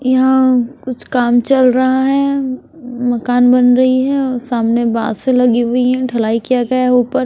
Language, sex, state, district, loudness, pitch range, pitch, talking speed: Hindi, female, Chhattisgarh, Raipur, -13 LUFS, 245-260 Hz, 250 Hz, 175 wpm